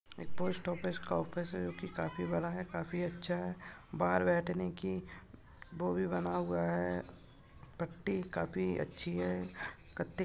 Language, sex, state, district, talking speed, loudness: Hindi, male, Chhattisgarh, Bastar, 165 wpm, -37 LUFS